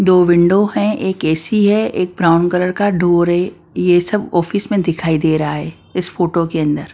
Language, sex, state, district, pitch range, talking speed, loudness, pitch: Hindi, female, Maharashtra, Washim, 165-190 Hz, 205 wpm, -15 LUFS, 175 Hz